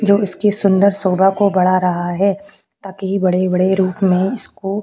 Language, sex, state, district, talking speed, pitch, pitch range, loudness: Hindi, female, Chhattisgarh, Korba, 200 wpm, 195 Hz, 185-200 Hz, -16 LUFS